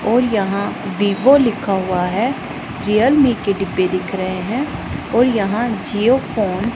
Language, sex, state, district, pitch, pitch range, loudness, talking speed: Hindi, female, Punjab, Pathankot, 210 Hz, 195-245 Hz, -17 LUFS, 150 wpm